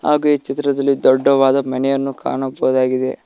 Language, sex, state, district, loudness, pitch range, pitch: Kannada, male, Karnataka, Koppal, -17 LUFS, 130-140 Hz, 135 Hz